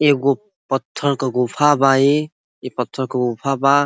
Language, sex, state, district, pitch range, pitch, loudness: Bhojpuri, male, Uttar Pradesh, Ghazipur, 130-145 Hz, 135 Hz, -18 LUFS